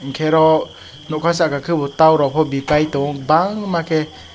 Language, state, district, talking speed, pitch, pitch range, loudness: Kokborok, Tripura, West Tripura, 150 wpm, 155 Hz, 140-160 Hz, -17 LUFS